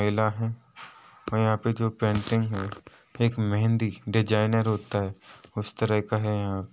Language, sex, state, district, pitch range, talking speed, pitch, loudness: Hindi, male, Chhattisgarh, Rajnandgaon, 105-110 Hz, 160 wpm, 110 Hz, -27 LUFS